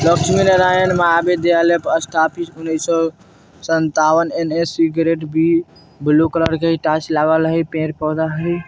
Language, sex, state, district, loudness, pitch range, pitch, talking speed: Bajjika, male, Bihar, Vaishali, -16 LUFS, 160-170 Hz, 165 Hz, 130 wpm